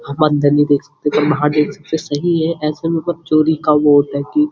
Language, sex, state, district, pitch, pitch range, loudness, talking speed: Hindi, male, Uttarakhand, Uttarkashi, 150 Hz, 145-165 Hz, -15 LUFS, 250 wpm